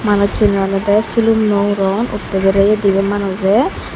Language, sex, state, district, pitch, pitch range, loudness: Chakma, female, Tripura, Unakoti, 200 Hz, 195-210 Hz, -14 LUFS